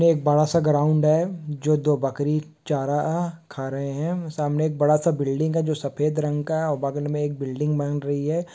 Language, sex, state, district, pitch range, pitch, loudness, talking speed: Hindi, male, Bihar, Supaul, 145-155 Hz, 150 Hz, -23 LUFS, 210 wpm